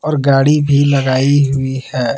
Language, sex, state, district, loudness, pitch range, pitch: Hindi, male, Jharkhand, Palamu, -13 LUFS, 130-145 Hz, 140 Hz